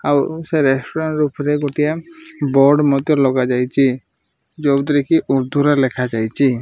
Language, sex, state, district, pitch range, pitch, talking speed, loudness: Odia, male, Odisha, Malkangiri, 135-150 Hz, 140 Hz, 110 wpm, -17 LUFS